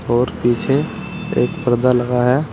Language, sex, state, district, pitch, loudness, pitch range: Hindi, male, Uttar Pradesh, Saharanpur, 125 Hz, -18 LUFS, 120-125 Hz